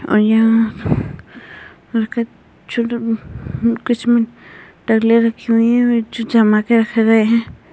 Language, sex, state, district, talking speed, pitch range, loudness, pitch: Hindi, male, Uttarakhand, Tehri Garhwal, 85 wpm, 225-235 Hz, -16 LUFS, 230 Hz